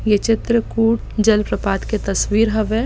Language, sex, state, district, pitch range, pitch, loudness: Chhattisgarhi, female, Chhattisgarh, Bastar, 210-225 Hz, 220 Hz, -18 LUFS